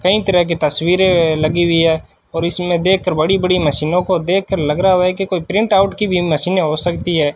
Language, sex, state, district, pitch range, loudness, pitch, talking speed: Hindi, male, Rajasthan, Bikaner, 165-190 Hz, -15 LUFS, 180 Hz, 255 wpm